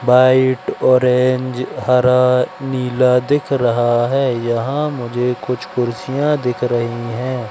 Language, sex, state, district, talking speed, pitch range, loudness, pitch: Hindi, male, Madhya Pradesh, Katni, 110 wpm, 125-130 Hz, -16 LUFS, 125 Hz